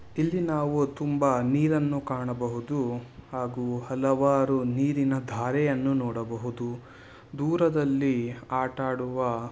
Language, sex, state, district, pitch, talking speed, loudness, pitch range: Kannada, male, Karnataka, Shimoga, 130 Hz, 90 wpm, -27 LUFS, 125-145 Hz